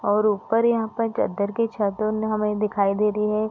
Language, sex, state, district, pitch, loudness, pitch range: Hindi, female, Chhattisgarh, Bilaspur, 215 Hz, -23 LUFS, 210-225 Hz